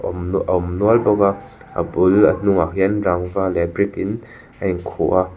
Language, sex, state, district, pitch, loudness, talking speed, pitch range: Mizo, male, Mizoram, Aizawl, 95 Hz, -18 LUFS, 200 wpm, 90-100 Hz